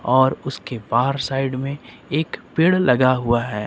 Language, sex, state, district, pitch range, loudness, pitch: Hindi, male, Uttar Pradesh, Lucknow, 125-140 Hz, -20 LUFS, 130 Hz